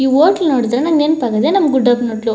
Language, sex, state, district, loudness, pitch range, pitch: Kannada, female, Karnataka, Chamarajanagar, -14 LUFS, 240-310 Hz, 265 Hz